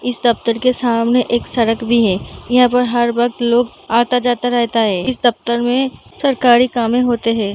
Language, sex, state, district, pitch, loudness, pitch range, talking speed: Hindi, female, Bihar, Darbhanga, 240 Hz, -15 LUFS, 230-245 Hz, 185 wpm